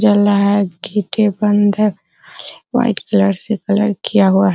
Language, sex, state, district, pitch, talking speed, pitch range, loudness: Hindi, female, Bihar, Araria, 205 Hz, 170 wpm, 195-210 Hz, -15 LUFS